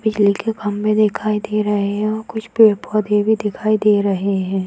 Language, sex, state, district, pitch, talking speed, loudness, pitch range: Hindi, female, Bihar, Darbhanga, 210 Hz, 190 wpm, -17 LUFS, 205-215 Hz